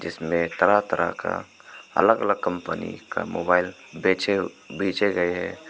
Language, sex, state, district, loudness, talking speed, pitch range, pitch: Hindi, male, Arunachal Pradesh, Papum Pare, -24 LUFS, 135 wpm, 85-95 Hz, 90 Hz